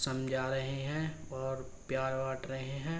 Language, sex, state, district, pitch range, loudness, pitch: Hindi, male, Uttar Pradesh, Jalaun, 130-135 Hz, -37 LUFS, 130 Hz